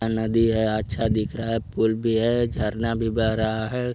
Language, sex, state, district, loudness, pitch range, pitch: Hindi, male, Chhattisgarh, Balrampur, -23 LUFS, 110-115 Hz, 110 Hz